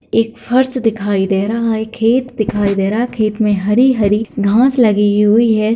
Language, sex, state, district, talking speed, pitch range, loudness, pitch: Hindi, female, Bihar, Jahanabad, 200 wpm, 205-235 Hz, -14 LUFS, 220 Hz